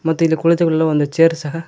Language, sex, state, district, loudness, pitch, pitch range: Kannada, male, Karnataka, Koppal, -15 LUFS, 165 Hz, 160-165 Hz